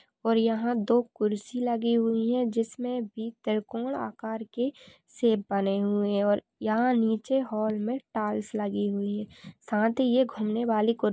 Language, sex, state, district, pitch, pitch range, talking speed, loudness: Hindi, female, Bihar, Kishanganj, 225 Hz, 210-240 Hz, 165 wpm, -28 LUFS